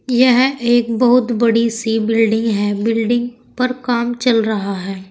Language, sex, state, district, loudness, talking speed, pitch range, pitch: Hindi, female, Uttar Pradesh, Saharanpur, -16 LUFS, 155 wpm, 225-245 Hz, 230 Hz